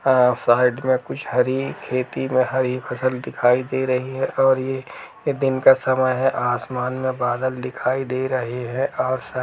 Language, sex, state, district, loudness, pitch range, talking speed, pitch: Hindi, male, Uttar Pradesh, Jalaun, -21 LUFS, 125-130 Hz, 185 wpm, 130 Hz